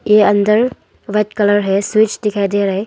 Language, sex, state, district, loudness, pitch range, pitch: Hindi, female, Arunachal Pradesh, Longding, -15 LUFS, 200-210 Hz, 205 Hz